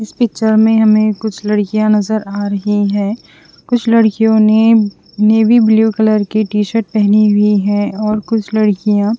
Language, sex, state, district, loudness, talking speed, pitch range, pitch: Hindi, female, Chandigarh, Chandigarh, -12 LUFS, 165 wpm, 210-220 Hz, 215 Hz